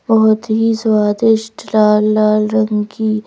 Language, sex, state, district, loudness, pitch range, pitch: Hindi, female, Madhya Pradesh, Bhopal, -14 LUFS, 215-220 Hz, 215 Hz